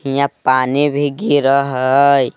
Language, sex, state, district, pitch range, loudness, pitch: Magahi, male, Jharkhand, Palamu, 130-140 Hz, -15 LUFS, 140 Hz